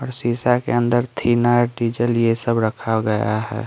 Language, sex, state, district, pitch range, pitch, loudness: Hindi, male, Bihar, Patna, 115-120 Hz, 120 Hz, -19 LUFS